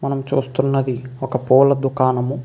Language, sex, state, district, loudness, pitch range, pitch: Telugu, male, Andhra Pradesh, Visakhapatnam, -18 LUFS, 130-135 Hz, 135 Hz